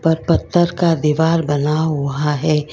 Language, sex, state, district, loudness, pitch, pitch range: Hindi, female, Karnataka, Bangalore, -17 LUFS, 155 Hz, 150-165 Hz